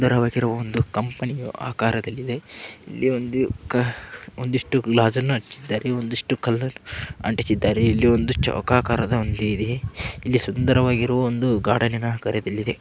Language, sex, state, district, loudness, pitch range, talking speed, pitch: Kannada, male, Karnataka, Dharwad, -23 LUFS, 110-125 Hz, 105 wpm, 120 Hz